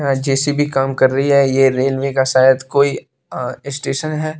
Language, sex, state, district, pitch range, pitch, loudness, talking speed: Hindi, male, Bihar, West Champaran, 135-140 Hz, 135 Hz, -16 LUFS, 190 wpm